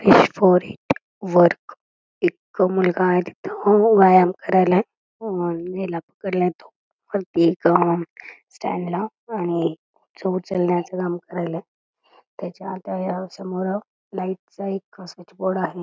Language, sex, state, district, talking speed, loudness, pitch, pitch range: Marathi, female, Karnataka, Belgaum, 100 wpm, -21 LUFS, 185 Hz, 175-195 Hz